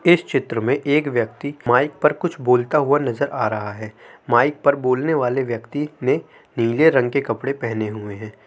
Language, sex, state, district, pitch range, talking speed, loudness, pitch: Hindi, male, Uttar Pradesh, Jalaun, 115-145 Hz, 200 wpm, -20 LUFS, 130 Hz